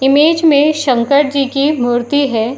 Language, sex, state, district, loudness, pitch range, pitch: Hindi, female, Uttar Pradesh, Muzaffarnagar, -12 LUFS, 250-295 Hz, 280 Hz